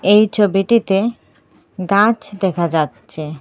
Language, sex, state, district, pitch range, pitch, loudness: Bengali, female, Assam, Hailakandi, 170-210 Hz, 195 Hz, -16 LUFS